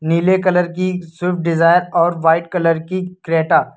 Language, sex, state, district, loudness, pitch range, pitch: Hindi, male, Uttar Pradesh, Lucknow, -16 LUFS, 165-180 Hz, 175 Hz